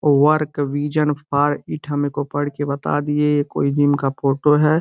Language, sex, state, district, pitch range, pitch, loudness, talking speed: Hindi, male, Uttar Pradesh, Gorakhpur, 145-150 Hz, 145 Hz, -19 LUFS, 200 wpm